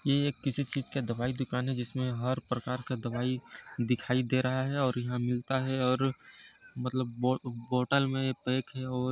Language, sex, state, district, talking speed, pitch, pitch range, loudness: Hindi, male, Chhattisgarh, Sarguja, 185 wpm, 130 Hz, 125-130 Hz, -32 LUFS